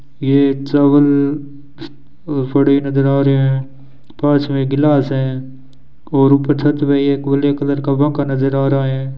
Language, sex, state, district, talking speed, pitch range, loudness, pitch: Hindi, male, Rajasthan, Bikaner, 165 wpm, 135-140 Hz, -15 LUFS, 140 Hz